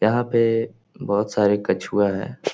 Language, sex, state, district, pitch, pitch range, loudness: Hindi, male, Uttar Pradesh, Etah, 105 Hz, 100-115 Hz, -21 LUFS